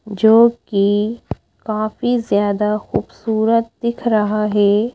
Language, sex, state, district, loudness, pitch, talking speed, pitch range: Hindi, female, Madhya Pradesh, Bhopal, -17 LUFS, 220 Hz, 85 wpm, 210-230 Hz